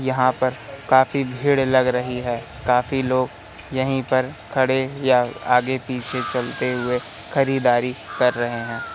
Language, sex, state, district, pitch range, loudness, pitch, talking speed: Hindi, male, Madhya Pradesh, Katni, 125-130 Hz, -21 LUFS, 130 Hz, 135 wpm